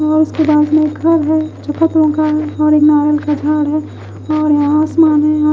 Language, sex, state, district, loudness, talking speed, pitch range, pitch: Hindi, female, Odisha, Khordha, -13 LUFS, 185 wpm, 300-310 Hz, 305 Hz